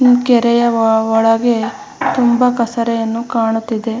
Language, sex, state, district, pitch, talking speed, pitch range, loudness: Kannada, female, Karnataka, Mysore, 230 Hz, 135 wpm, 225-240 Hz, -14 LUFS